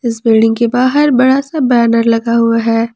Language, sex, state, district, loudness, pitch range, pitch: Hindi, female, Jharkhand, Ranchi, -11 LUFS, 230-255 Hz, 235 Hz